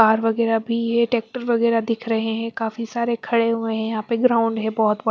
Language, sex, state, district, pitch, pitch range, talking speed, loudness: Hindi, female, Bihar, West Champaran, 230 Hz, 225-235 Hz, 225 wpm, -21 LUFS